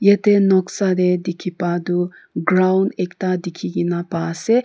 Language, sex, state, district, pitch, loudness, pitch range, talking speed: Nagamese, female, Nagaland, Kohima, 180 Hz, -19 LUFS, 175-195 Hz, 130 wpm